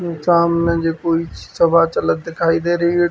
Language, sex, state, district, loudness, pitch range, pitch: Hindi, male, Uttar Pradesh, Hamirpur, -17 LUFS, 165-170 Hz, 170 Hz